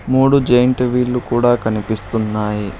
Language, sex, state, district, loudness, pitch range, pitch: Telugu, male, Telangana, Hyderabad, -16 LUFS, 110-125 Hz, 120 Hz